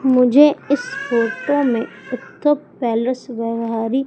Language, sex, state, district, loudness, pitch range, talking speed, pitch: Hindi, female, Madhya Pradesh, Umaria, -18 LUFS, 230-285 Hz, 105 wpm, 255 Hz